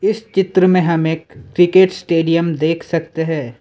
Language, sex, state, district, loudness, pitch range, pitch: Hindi, male, Assam, Sonitpur, -15 LUFS, 160-185 Hz, 165 Hz